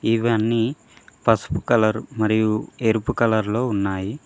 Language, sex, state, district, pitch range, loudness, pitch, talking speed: Telugu, male, Telangana, Mahabubabad, 110-115 Hz, -21 LUFS, 110 Hz, 115 wpm